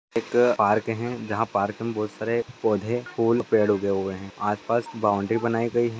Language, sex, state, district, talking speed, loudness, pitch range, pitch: Hindi, male, Bihar, Madhepura, 180 wpm, -25 LUFS, 105-120 Hz, 115 Hz